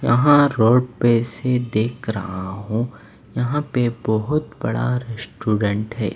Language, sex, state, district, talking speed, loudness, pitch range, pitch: Hindi, male, Maharashtra, Mumbai Suburban, 125 wpm, -20 LUFS, 110-125 Hz, 120 Hz